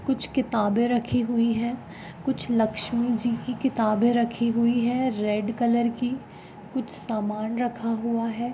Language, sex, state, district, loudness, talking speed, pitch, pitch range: Hindi, female, Goa, North and South Goa, -25 LUFS, 140 wpm, 235 Hz, 225-245 Hz